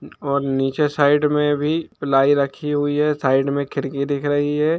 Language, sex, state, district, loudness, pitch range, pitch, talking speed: Hindi, male, Jharkhand, Jamtara, -19 LUFS, 140-150 Hz, 145 Hz, 200 wpm